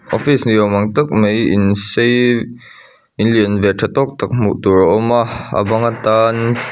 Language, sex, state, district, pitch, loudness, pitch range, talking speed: Mizo, male, Mizoram, Aizawl, 110 Hz, -14 LUFS, 105-120 Hz, 185 wpm